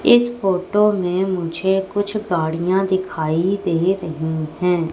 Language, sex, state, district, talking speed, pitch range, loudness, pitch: Hindi, female, Madhya Pradesh, Katni, 120 wpm, 165-195 Hz, -19 LUFS, 185 Hz